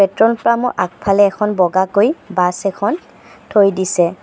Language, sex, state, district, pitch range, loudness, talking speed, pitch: Assamese, male, Assam, Sonitpur, 185-225 Hz, -15 LUFS, 130 wpm, 200 Hz